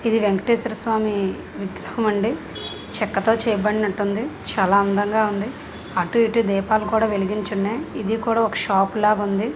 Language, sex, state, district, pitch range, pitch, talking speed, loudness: Telugu, female, Andhra Pradesh, Chittoor, 200-225 Hz, 210 Hz, 140 wpm, -21 LUFS